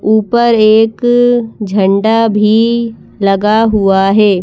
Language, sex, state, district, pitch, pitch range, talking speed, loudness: Hindi, female, Madhya Pradesh, Bhopal, 220 Hz, 205-230 Hz, 95 wpm, -10 LUFS